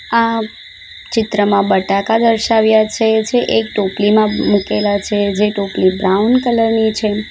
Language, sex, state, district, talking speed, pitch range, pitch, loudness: Gujarati, female, Gujarat, Valsad, 130 wpm, 205-225 Hz, 215 Hz, -14 LUFS